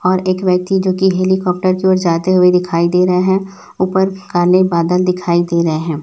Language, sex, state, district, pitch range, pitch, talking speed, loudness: Hindi, male, Chhattisgarh, Raipur, 175-185 Hz, 180 Hz, 210 wpm, -14 LUFS